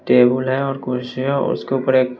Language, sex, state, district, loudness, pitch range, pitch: Hindi, male, Bihar, West Champaran, -19 LUFS, 125-135 Hz, 130 Hz